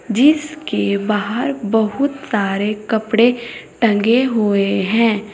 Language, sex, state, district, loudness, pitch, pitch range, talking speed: Hindi, female, Uttar Pradesh, Saharanpur, -17 LUFS, 225 Hz, 210-245 Hz, 90 wpm